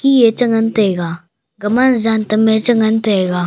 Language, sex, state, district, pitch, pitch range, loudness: Wancho, male, Arunachal Pradesh, Longding, 220 Hz, 190-230 Hz, -14 LUFS